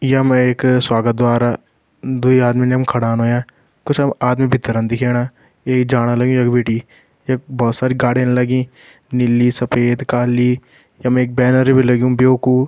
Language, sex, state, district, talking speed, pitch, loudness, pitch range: Garhwali, male, Uttarakhand, Tehri Garhwal, 170 wpm, 125 Hz, -15 LUFS, 120-130 Hz